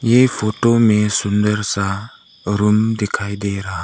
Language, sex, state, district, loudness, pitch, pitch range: Hindi, male, Arunachal Pradesh, Lower Dibang Valley, -17 LUFS, 105 Hz, 100-110 Hz